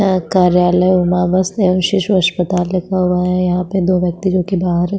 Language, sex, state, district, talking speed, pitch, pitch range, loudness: Hindi, female, Chhattisgarh, Sukma, 190 wpm, 180 Hz, 180-185 Hz, -15 LUFS